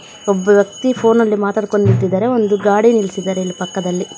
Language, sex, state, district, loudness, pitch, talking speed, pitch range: Kannada, female, Karnataka, Bangalore, -15 LUFS, 205 Hz, 160 wpm, 190-220 Hz